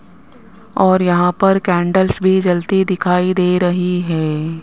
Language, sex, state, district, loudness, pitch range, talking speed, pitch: Hindi, male, Rajasthan, Jaipur, -15 LUFS, 175-190 Hz, 130 wpm, 180 Hz